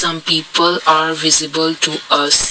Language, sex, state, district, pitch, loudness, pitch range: English, male, Assam, Kamrup Metropolitan, 160 Hz, -13 LUFS, 155-165 Hz